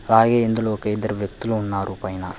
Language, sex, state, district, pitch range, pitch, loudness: Telugu, male, Telangana, Hyderabad, 100-110 Hz, 105 Hz, -22 LUFS